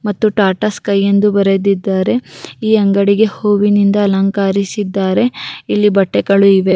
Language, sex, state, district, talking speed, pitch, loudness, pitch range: Kannada, female, Karnataka, Raichur, 105 wpm, 200 Hz, -13 LUFS, 195-210 Hz